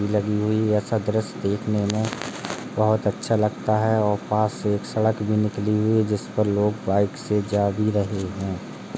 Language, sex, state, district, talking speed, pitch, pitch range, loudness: Hindi, male, Uttar Pradesh, Jalaun, 185 wpm, 105 Hz, 105-110 Hz, -23 LUFS